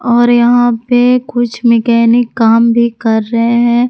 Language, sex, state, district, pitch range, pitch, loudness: Hindi, female, Jharkhand, Palamu, 230-240 Hz, 235 Hz, -10 LUFS